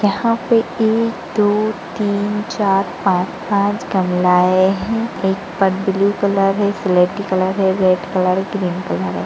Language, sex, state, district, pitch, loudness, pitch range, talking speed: Hindi, female, Chhattisgarh, Sarguja, 195 Hz, -17 LUFS, 185-205 Hz, 160 wpm